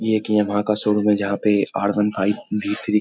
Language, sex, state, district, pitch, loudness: Hindi, male, Bihar, Lakhisarai, 105 Hz, -20 LUFS